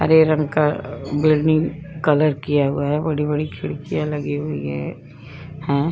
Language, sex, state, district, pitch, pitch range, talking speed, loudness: Hindi, female, Uttar Pradesh, Jyotiba Phule Nagar, 150 Hz, 145-155 Hz, 130 wpm, -20 LUFS